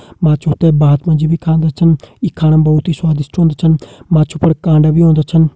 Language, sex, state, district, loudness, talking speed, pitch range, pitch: Hindi, male, Uttarakhand, Uttarkashi, -12 LUFS, 215 wpm, 155-165 Hz, 160 Hz